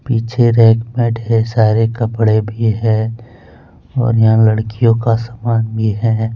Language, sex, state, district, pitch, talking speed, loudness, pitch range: Hindi, male, Jharkhand, Deoghar, 115 Hz, 140 wpm, -14 LUFS, 110-115 Hz